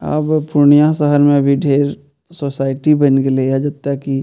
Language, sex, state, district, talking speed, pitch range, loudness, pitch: Maithili, male, Bihar, Purnia, 185 wpm, 140-145 Hz, -14 LUFS, 145 Hz